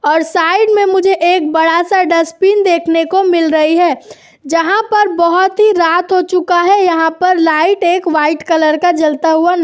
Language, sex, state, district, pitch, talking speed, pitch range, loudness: Hindi, female, Uttar Pradesh, Jyotiba Phule Nagar, 345 Hz, 200 wpm, 325-375 Hz, -11 LUFS